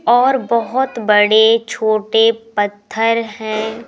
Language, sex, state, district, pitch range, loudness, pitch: Hindi, female, Madhya Pradesh, Umaria, 215-230 Hz, -15 LUFS, 225 Hz